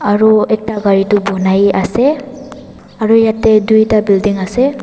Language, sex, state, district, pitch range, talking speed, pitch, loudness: Nagamese, female, Nagaland, Dimapur, 200-225 Hz, 135 wpm, 215 Hz, -12 LUFS